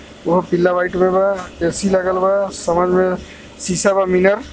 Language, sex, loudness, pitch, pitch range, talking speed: Bhojpuri, male, -17 LUFS, 185 Hz, 180-195 Hz, 130 wpm